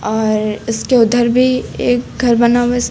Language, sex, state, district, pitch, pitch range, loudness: Hindi, female, Uttar Pradesh, Lucknow, 240 Hz, 225-245 Hz, -14 LUFS